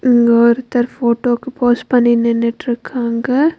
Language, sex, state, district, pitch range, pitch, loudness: Tamil, female, Tamil Nadu, Nilgiris, 235-250 Hz, 240 Hz, -15 LUFS